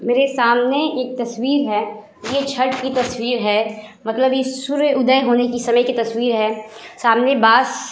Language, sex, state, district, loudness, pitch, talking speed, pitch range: Hindi, female, Uttar Pradesh, Budaun, -18 LUFS, 245 Hz, 175 wpm, 225-260 Hz